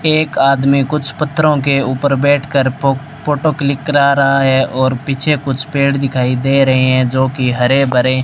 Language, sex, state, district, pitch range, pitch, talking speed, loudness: Hindi, male, Rajasthan, Bikaner, 130-140 Hz, 135 Hz, 190 wpm, -13 LUFS